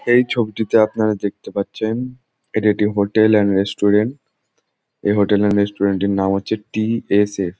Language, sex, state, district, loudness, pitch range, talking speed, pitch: Bengali, male, West Bengal, Jhargram, -18 LUFS, 100-110 Hz, 150 wpm, 105 Hz